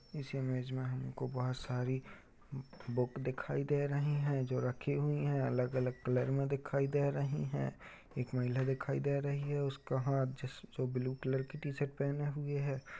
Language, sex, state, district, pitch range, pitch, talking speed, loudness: Hindi, male, Uttar Pradesh, Budaun, 130-140 Hz, 135 Hz, 185 wpm, -37 LUFS